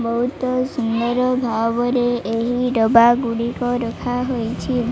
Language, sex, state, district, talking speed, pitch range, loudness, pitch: Odia, female, Odisha, Malkangiri, 75 wpm, 230-250 Hz, -19 LUFS, 240 Hz